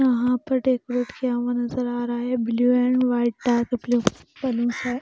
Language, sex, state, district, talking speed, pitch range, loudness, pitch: Hindi, female, Punjab, Pathankot, 190 wpm, 240-250 Hz, -23 LUFS, 245 Hz